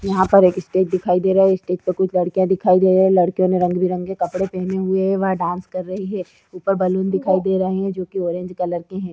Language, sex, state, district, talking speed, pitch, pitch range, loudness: Hindi, female, Uttar Pradesh, Jyotiba Phule Nagar, 270 wpm, 185 Hz, 180-190 Hz, -19 LUFS